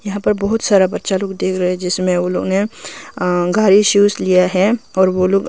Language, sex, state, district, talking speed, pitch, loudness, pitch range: Hindi, female, Arunachal Pradesh, Longding, 220 wpm, 195 Hz, -15 LUFS, 185-205 Hz